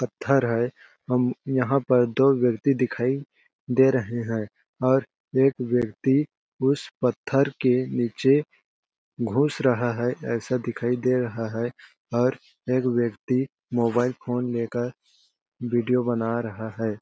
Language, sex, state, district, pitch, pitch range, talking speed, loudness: Hindi, male, Chhattisgarh, Balrampur, 125 Hz, 120-130 Hz, 125 wpm, -24 LUFS